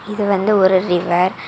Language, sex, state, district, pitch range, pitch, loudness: Tamil, female, Tamil Nadu, Kanyakumari, 180-200 Hz, 190 Hz, -16 LUFS